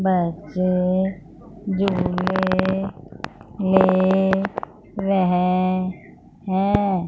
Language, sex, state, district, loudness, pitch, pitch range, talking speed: Hindi, female, Punjab, Fazilka, -21 LUFS, 185 Hz, 180-195 Hz, 40 wpm